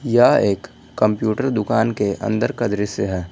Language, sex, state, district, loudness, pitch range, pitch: Hindi, male, Jharkhand, Garhwa, -19 LUFS, 100-120 Hz, 105 Hz